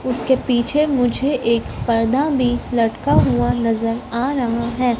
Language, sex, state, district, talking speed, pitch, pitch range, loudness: Hindi, female, Madhya Pradesh, Dhar, 145 wpm, 245 Hz, 230-260 Hz, -18 LUFS